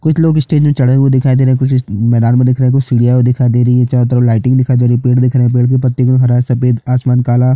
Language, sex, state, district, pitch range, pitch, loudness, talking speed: Hindi, male, Chhattisgarh, Jashpur, 125-130 Hz, 125 Hz, -11 LUFS, 350 wpm